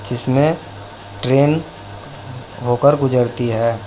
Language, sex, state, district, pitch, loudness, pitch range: Hindi, male, Uttar Pradesh, Saharanpur, 125 Hz, -17 LUFS, 100-140 Hz